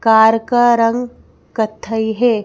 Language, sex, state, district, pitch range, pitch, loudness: Hindi, female, Madhya Pradesh, Bhopal, 220-240 Hz, 225 Hz, -15 LUFS